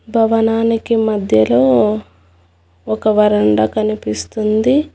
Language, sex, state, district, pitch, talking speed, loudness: Telugu, female, Telangana, Hyderabad, 215 Hz, 60 wpm, -15 LUFS